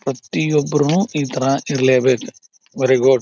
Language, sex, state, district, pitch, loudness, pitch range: Kannada, male, Karnataka, Bijapur, 135 Hz, -17 LUFS, 130-145 Hz